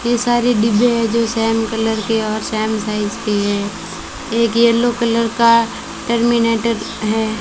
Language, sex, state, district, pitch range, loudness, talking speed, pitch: Hindi, female, Rajasthan, Bikaner, 220-235 Hz, -16 LUFS, 155 wpm, 225 Hz